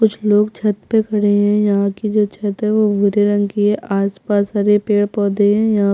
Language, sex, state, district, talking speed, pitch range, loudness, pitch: Hindi, female, Chhattisgarh, Jashpur, 240 wpm, 205-210 Hz, -16 LUFS, 205 Hz